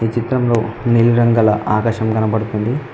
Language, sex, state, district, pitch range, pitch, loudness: Telugu, male, Telangana, Mahabubabad, 110-120 Hz, 115 Hz, -16 LUFS